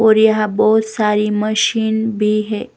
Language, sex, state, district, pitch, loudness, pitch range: Hindi, female, Bihar, West Champaran, 215 Hz, -15 LUFS, 210-220 Hz